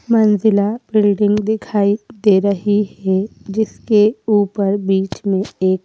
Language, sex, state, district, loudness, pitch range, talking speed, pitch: Hindi, female, Madhya Pradesh, Bhopal, -16 LUFS, 195-215 Hz, 115 wpm, 205 Hz